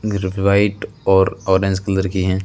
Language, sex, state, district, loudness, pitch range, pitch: Hindi, male, Rajasthan, Bikaner, -17 LUFS, 95-100 Hz, 95 Hz